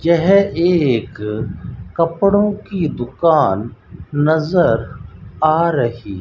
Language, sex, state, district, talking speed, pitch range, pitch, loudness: Hindi, male, Rajasthan, Bikaner, 85 wpm, 115-170 Hz, 155 Hz, -16 LUFS